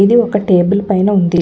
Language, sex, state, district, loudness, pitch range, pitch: Telugu, female, Andhra Pradesh, Guntur, -12 LUFS, 185-205 Hz, 200 Hz